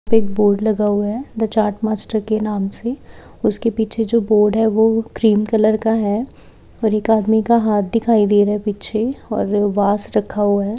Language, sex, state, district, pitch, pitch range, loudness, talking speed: Hindi, female, Haryana, Charkhi Dadri, 215 Hz, 210-225 Hz, -17 LUFS, 205 wpm